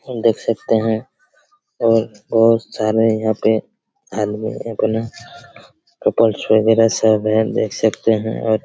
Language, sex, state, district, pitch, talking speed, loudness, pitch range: Hindi, male, Chhattisgarh, Raigarh, 110 Hz, 95 wpm, -17 LUFS, 110-115 Hz